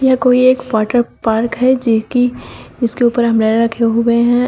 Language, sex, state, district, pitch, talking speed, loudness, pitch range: Hindi, female, Uttar Pradesh, Shamli, 235 Hz, 175 wpm, -14 LUFS, 230-250 Hz